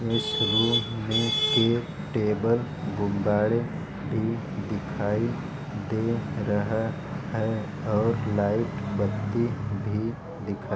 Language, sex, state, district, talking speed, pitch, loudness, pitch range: Hindi, male, Uttar Pradesh, Varanasi, 90 wpm, 115 Hz, -27 LUFS, 105-120 Hz